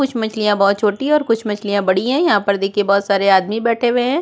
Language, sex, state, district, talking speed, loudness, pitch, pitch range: Hindi, female, Uttarakhand, Tehri Garhwal, 255 wpm, -16 LUFS, 210 Hz, 200-240 Hz